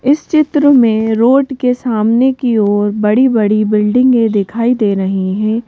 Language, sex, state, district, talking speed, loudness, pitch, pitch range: Hindi, female, Madhya Pradesh, Bhopal, 150 wpm, -12 LUFS, 230 Hz, 210-255 Hz